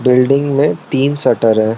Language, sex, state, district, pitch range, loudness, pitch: Hindi, male, Arunachal Pradesh, Lower Dibang Valley, 115-140 Hz, -13 LUFS, 135 Hz